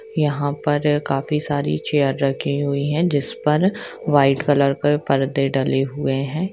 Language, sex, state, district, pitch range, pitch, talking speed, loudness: Hindi, female, Jharkhand, Sahebganj, 135-150 Hz, 145 Hz, 165 wpm, -20 LUFS